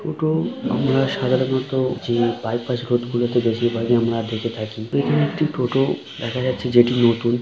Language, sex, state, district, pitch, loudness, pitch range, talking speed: Bengali, male, West Bengal, Kolkata, 120 Hz, -20 LUFS, 120-130 Hz, 135 wpm